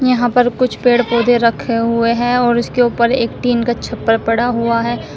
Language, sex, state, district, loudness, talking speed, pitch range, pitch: Hindi, female, Uttar Pradesh, Shamli, -15 LUFS, 210 wpm, 230-245 Hz, 240 Hz